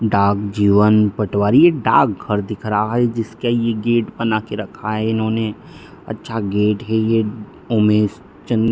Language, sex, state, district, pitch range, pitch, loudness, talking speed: Hindi, male, Bihar, Darbhanga, 105-115 Hz, 110 Hz, -18 LUFS, 160 wpm